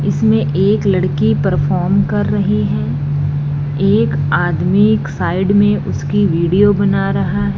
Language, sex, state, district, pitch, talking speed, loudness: Hindi, female, Punjab, Fazilka, 145 Hz, 135 wpm, -14 LUFS